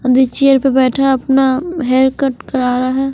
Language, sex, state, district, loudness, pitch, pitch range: Hindi, female, Punjab, Fazilka, -13 LUFS, 265 Hz, 255-270 Hz